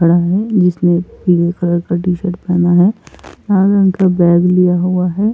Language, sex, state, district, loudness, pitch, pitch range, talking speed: Hindi, female, Goa, North and South Goa, -13 LUFS, 180 Hz, 175-190 Hz, 180 wpm